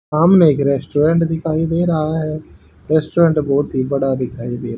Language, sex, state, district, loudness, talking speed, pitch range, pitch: Hindi, male, Haryana, Rohtak, -16 LUFS, 175 wpm, 135-160 Hz, 150 Hz